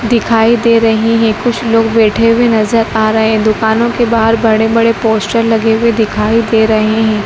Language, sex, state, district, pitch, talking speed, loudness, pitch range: Hindi, female, Madhya Pradesh, Dhar, 225 Hz, 200 wpm, -11 LUFS, 220-230 Hz